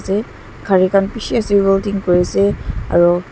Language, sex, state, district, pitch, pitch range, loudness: Nagamese, female, Nagaland, Dimapur, 195 Hz, 180-200 Hz, -16 LUFS